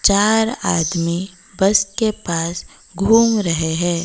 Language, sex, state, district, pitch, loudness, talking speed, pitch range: Hindi, female, Odisha, Malkangiri, 190 Hz, -17 LUFS, 120 wpm, 170-215 Hz